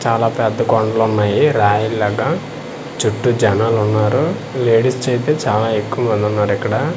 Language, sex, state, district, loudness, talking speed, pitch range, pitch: Telugu, male, Andhra Pradesh, Manyam, -16 LUFS, 130 wpm, 105-125 Hz, 115 Hz